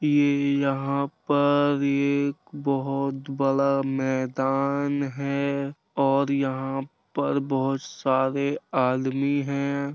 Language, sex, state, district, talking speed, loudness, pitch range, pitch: Bundeli, male, Uttar Pradesh, Jalaun, 95 wpm, -25 LUFS, 135-140 Hz, 140 Hz